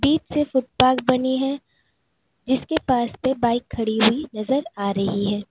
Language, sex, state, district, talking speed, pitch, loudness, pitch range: Hindi, female, Uttar Pradesh, Lalitpur, 175 wpm, 255 Hz, -22 LUFS, 220-270 Hz